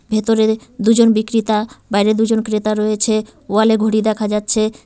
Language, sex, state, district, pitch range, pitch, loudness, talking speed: Bengali, female, West Bengal, Cooch Behar, 215-225 Hz, 220 Hz, -16 LUFS, 150 wpm